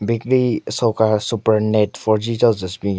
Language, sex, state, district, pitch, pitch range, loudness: Rengma, male, Nagaland, Kohima, 110 Hz, 105-115 Hz, -18 LUFS